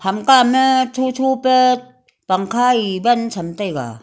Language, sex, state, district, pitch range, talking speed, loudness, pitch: Wancho, female, Arunachal Pradesh, Longding, 195-255 Hz, 135 wpm, -16 LUFS, 245 Hz